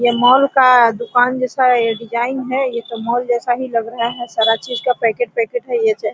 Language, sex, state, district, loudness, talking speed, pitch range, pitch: Hindi, female, Bihar, Araria, -16 LUFS, 225 wpm, 235-260 Hz, 245 Hz